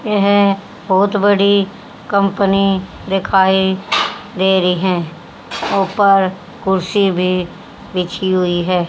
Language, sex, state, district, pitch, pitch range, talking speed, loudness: Hindi, female, Haryana, Rohtak, 190 Hz, 185-200 Hz, 95 wpm, -15 LUFS